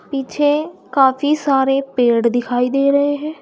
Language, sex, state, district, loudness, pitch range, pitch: Hindi, female, Uttar Pradesh, Saharanpur, -16 LUFS, 255-290 Hz, 275 Hz